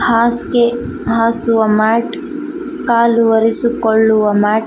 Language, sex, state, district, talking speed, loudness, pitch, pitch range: Kannada, female, Karnataka, Koppal, 90 wpm, -14 LUFS, 230 Hz, 220-240 Hz